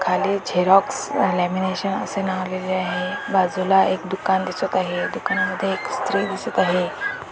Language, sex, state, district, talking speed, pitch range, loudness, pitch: Marathi, female, Maharashtra, Dhule, 140 wpm, 185-195 Hz, -21 LUFS, 185 Hz